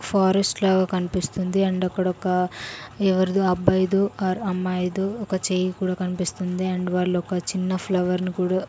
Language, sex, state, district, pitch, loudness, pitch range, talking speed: Telugu, female, Andhra Pradesh, Sri Satya Sai, 185 Hz, -23 LUFS, 180-190 Hz, 140 wpm